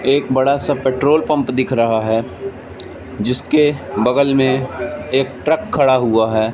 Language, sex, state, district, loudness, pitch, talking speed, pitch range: Hindi, male, Madhya Pradesh, Katni, -16 LUFS, 130 Hz, 145 wpm, 115-140 Hz